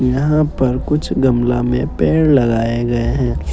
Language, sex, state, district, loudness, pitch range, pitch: Hindi, male, Jharkhand, Ranchi, -16 LUFS, 120-145 Hz, 125 Hz